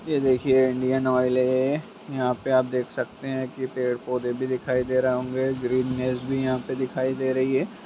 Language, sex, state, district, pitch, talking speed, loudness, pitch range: Hindi, male, Jharkhand, Jamtara, 130 Hz, 205 wpm, -25 LUFS, 125-130 Hz